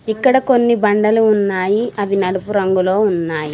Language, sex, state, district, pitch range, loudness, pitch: Telugu, female, Telangana, Mahabubabad, 190-220 Hz, -15 LUFS, 205 Hz